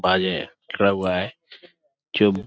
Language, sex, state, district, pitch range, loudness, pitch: Hindi, male, Uttar Pradesh, Budaun, 95-150 Hz, -23 LUFS, 100 Hz